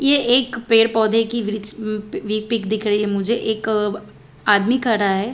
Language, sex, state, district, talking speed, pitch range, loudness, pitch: Hindi, female, Chhattisgarh, Bilaspur, 180 wpm, 210-230 Hz, -19 LUFS, 220 Hz